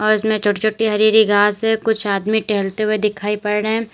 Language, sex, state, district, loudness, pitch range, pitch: Hindi, female, Uttar Pradesh, Lalitpur, -17 LUFS, 210-220 Hz, 215 Hz